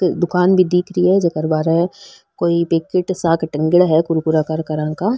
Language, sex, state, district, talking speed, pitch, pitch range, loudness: Marwari, female, Rajasthan, Nagaur, 115 wpm, 170 Hz, 160-180 Hz, -17 LUFS